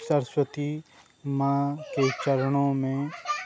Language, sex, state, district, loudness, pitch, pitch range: Hindi, male, Uttar Pradesh, Budaun, -27 LUFS, 140 Hz, 140-145 Hz